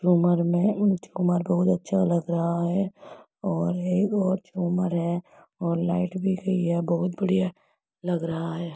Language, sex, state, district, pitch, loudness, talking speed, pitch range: Hindi, female, Uttar Pradesh, Etah, 180 Hz, -25 LUFS, 165 wpm, 170-190 Hz